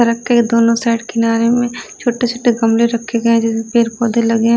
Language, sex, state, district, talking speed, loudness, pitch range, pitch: Hindi, female, Delhi, New Delhi, 210 wpm, -15 LUFS, 230-235 Hz, 230 Hz